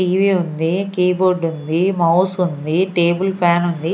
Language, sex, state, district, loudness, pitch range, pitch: Telugu, female, Andhra Pradesh, Sri Satya Sai, -17 LUFS, 165-185 Hz, 175 Hz